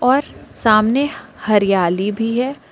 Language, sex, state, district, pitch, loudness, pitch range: Hindi, female, Jharkhand, Palamu, 225 Hz, -17 LUFS, 205-260 Hz